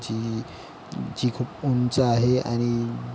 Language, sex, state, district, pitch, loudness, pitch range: Marathi, male, Maharashtra, Pune, 120 Hz, -25 LUFS, 115-125 Hz